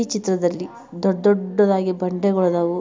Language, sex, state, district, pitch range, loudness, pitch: Kannada, male, Karnataka, Bijapur, 180-200 Hz, -20 LUFS, 190 Hz